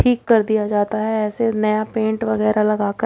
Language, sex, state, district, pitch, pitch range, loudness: Hindi, female, Odisha, Khordha, 215 Hz, 215-220 Hz, -19 LUFS